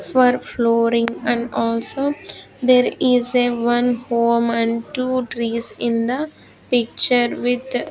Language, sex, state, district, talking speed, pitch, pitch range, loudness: English, female, Andhra Pradesh, Sri Satya Sai, 130 wpm, 245 Hz, 235-250 Hz, -18 LUFS